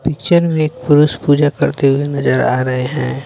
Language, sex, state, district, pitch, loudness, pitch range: Hindi, male, Bihar, West Champaran, 145 Hz, -14 LUFS, 135-150 Hz